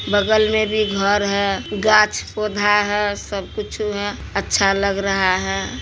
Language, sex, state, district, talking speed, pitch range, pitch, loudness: Hindi, female, Bihar, Supaul, 155 wpm, 200-210 Hz, 205 Hz, -19 LUFS